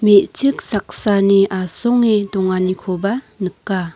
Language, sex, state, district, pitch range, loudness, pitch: Garo, female, Meghalaya, North Garo Hills, 185-215 Hz, -17 LUFS, 200 Hz